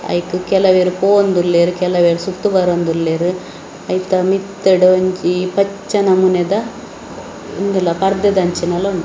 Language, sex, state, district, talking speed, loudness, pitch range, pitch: Tulu, female, Karnataka, Dakshina Kannada, 105 wpm, -15 LUFS, 175-195 Hz, 185 Hz